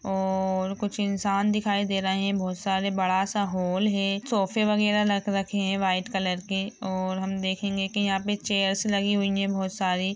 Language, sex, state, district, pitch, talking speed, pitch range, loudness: Hindi, female, Bihar, Jamui, 195 Hz, 200 wpm, 190-200 Hz, -26 LUFS